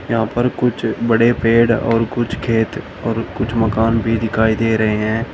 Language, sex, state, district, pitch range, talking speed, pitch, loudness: Hindi, male, Uttar Pradesh, Shamli, 110-115 Hz, 180 wpm, 115 Hz, -17 LUFS